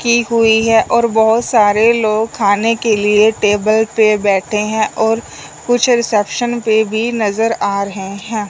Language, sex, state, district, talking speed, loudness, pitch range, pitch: Hindi, male, Punjab, Fazilka, 160 wpm, -13 LUFS, 210-230 Hz, 220 Hz